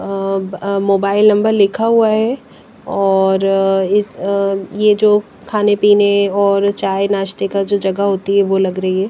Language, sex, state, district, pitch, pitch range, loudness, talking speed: Hindi, female, Punjab, Pathankot, 200 Hz, 195-205 Hz, -14 LUFS, 170 wpm